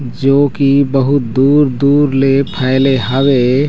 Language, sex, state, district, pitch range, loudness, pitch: Chhattisgarhi, male, Chhattisgarh, Raigarh, 130-140 Hz, -12 LUFS, 135 Hz